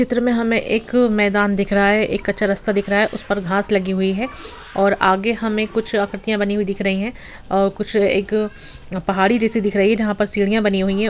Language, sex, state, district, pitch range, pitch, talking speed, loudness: Hindi, female, Bihar, Sitamarhi, 200-220 Hz, 205 Hz, 240 wpm, -18 LUFS